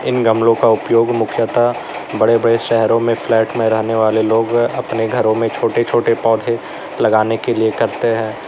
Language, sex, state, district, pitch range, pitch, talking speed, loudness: Hindi, male, Uttar Pradesh, Lalitpur, 110-115 Hz, 115 Hz, 175 wpm, -15 LUFS